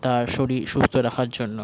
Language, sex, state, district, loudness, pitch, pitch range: Bengali, male, West Bengal, Jhargram, -23 LUFS, 125 Hz, 120-130 Hz